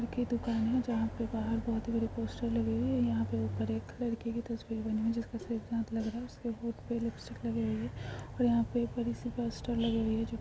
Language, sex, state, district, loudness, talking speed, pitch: Hindi, female, Uttarakhand, Tehri Garhwal, -34 LUFS, 225 wpm, 230 Hz